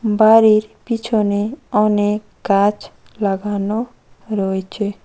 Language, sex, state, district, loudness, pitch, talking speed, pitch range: Bengali, female, West Bengal, Cooch Behar, -17 LUFS, 210 Hz, 70 wpm, 205-220 Hz